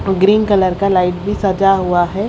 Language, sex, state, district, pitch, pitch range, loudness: Hindi, female, Haryana, Rohtak, 195 Hz, 185-200 Hz, -14 LUFS